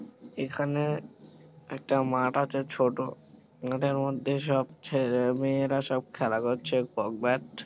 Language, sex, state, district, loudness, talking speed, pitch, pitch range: Bengali, male, West Bengal, Malda, -29 LUFS, 125 wpm, 135 Hz, 130-140 Hz